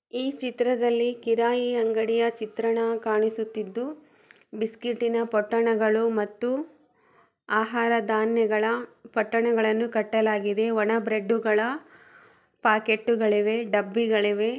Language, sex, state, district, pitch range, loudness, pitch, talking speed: Kannada, female, Karnataka, Chamarajanagar, 220-235 Hz, -25 LUFS, 230 Hz, 105 wpm